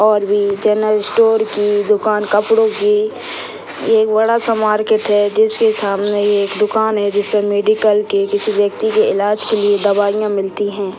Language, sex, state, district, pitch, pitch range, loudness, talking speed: Hindi, female, Bihar, Sitamarhi, 215 Hz, 205-225 Hz, -15 LUFS, 170 wpm